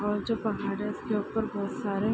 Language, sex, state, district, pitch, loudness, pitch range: Hindi, female, Bihar, Araria, 210 Hz, -31 LUFS, 205-220 Hz